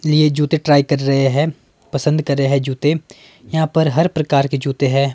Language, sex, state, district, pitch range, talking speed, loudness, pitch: Hindi, male, Himachal Pradesh, Shimla, 140-155 Hz, 200 wpm, -17 LUFS, 145 Hz